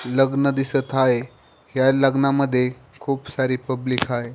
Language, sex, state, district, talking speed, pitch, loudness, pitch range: Marathi, male, Maharashtra, Pune, 125 wpm, 130 Hz, -21 LUFS, 125-135 Hz